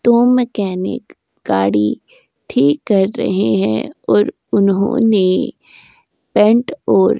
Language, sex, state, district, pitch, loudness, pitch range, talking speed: Hindi, female, Uttar Pradesh, Jyotiba Phule Nagar, 205 Hz, -15 LUFS, 185-235 Hz, 100 wpm